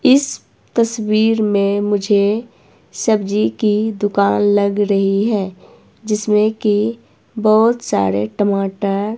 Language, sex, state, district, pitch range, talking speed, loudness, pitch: Hindi, female, Himachal Pradesh, Shimla, 200-220 Hz, 100 wpm, -16 LUFS, 210 Hz